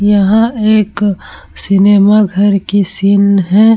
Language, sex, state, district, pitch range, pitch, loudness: Hindi, female, Bihar, Vaishali, 200-210 Hz, 205 Hz, -10 LUFS